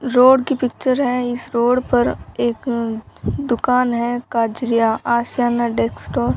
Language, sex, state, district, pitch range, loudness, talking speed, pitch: Hindi, female, Rajasthan, Bikaner, 235-250 Hz, -18 LUFS, 130 wpm, 240 Hz